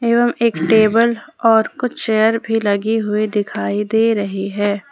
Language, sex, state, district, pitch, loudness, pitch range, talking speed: Hindi, female, Jharkhand, Ranchi, 220 Hz, -17 LUFS, 205-230 Hz, 160 wpm